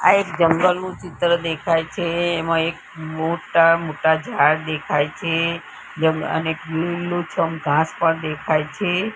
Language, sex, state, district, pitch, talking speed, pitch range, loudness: Gujarati, female, Gujarat, Gandhinagar, 165 Hz, 130 wpm, 160-170 Hz, -20 LUFS